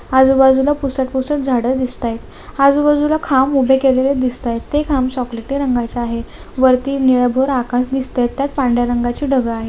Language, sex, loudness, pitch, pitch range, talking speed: Marathi, female, -16 LUFS, 260 Hz, 245-275 Hz, 155 wpm